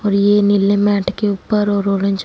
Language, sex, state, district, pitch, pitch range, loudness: Hindi, female, Punjab, Fazilka, 200 Hz, 200-205 Hz, -15 LUFS